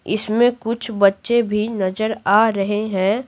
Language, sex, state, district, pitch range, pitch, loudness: Hindi, female, Bihar, Patna, 200-230 Hz, 215 Hz, -18 LUFS